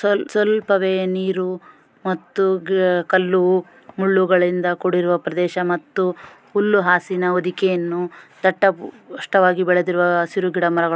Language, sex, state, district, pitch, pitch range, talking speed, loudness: Kannada, female, Karnataka, Shimoga, 185 Hz, 180-190 Hz, 100 wpm, -19 LUFS